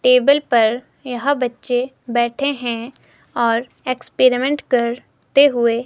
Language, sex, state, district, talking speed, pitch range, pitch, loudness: Hindi, female, Himachal Pradesh, Shimla, 125 wpm, 235-275 Hz, 250 Hz, -18 LUFS